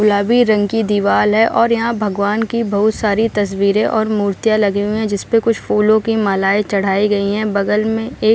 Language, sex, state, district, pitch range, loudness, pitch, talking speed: Hindi, female, Bihar, Jahanabad, 205-220 Hz, -15 LUFS, 210 Hz, 210 wpm